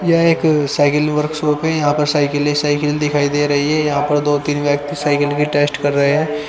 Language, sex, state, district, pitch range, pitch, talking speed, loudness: Hindi, male, Haryana, Rohtak, 145-150 Hz, 145 Hz, 240 wpm, -16 LUFS